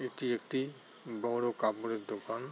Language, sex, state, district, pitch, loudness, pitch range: Bengali, male, West Bengal, Jalpaiguri, 120 Hz, -36 LUFS, 115-130 Hz